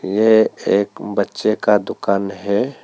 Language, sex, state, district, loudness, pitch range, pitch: Hindi, male, Arunachal Pradesh, Papum Pare, -18 LUFS, 100-110 Hz, 100 Hz